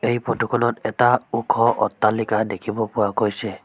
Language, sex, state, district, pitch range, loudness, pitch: Assamese, female, Assam, Sonitpur, 105-115 Hz, -21 LUFS, 110 Hz